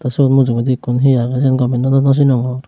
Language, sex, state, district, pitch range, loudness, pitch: Chakma, male, Tripura, Unakoti, 125-135 Hz, -14 LUFS, 130 Hz